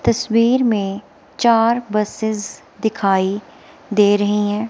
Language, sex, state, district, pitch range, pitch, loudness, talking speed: Hindi, female, Himachal Pradesh, Shimla, 205-230 Hz, 215 Hz, -18 LUFS, 100 wpm